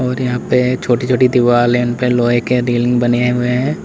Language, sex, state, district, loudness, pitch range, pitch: Hindi, male, Uttar Pradesh, Lalitpur, -14 LUFS, 120-125 Hz, 125 Hz